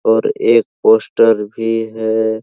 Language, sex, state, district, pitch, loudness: Hindi, male, Bihar, Araria, 115 Hz, -14 LUFS